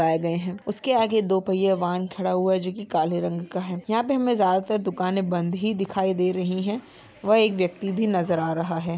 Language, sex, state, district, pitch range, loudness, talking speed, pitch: Hindi, female, Chhattisgarh, Raigarh, 180-205 Hz, -24 LUFS, 240 wpm, 185 Hz